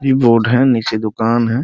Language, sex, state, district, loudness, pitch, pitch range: Hindi, male, Bihar, Muzaffarpur, -14 LUFS, 120 Hz, 115-130 Hz